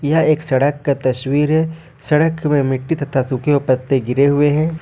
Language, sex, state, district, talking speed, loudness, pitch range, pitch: Hindi, male, Jharkhand, Ranchi, 200 wpm, -17 LUFS, 135-155 Hz, 145 Hz